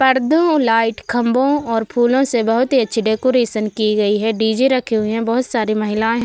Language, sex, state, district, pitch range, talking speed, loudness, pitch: Hindi, female, Uttar Pradesh, Budaun, 220-255 Hz, 210 wpm, -16 LUFS, 230 Hz